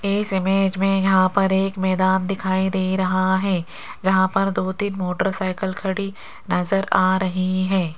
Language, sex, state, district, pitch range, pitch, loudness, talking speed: Hindi, female, Rajasthan, Jaipur, 185-195 Hz, 190 Hz, -21 LUFS, 150 wpm